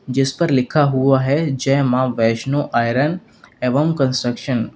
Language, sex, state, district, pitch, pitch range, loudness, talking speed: Hindi, male, Uttar Pradesh, Lalitpur, 135 Hz, 125-145 Hz, -18 LUFS, 150 wpm